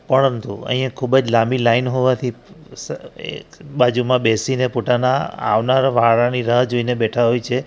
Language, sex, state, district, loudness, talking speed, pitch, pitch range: Gujarati, male, Gujarat, Valsad, -17 LUFS, 135 wpm, 125 Hz, 120-130 Hz